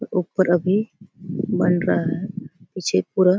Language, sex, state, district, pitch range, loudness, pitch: Hindi, female, Chhattisgarh, Bastar, 175-195 Hz, -22 LUFS, 185 Hz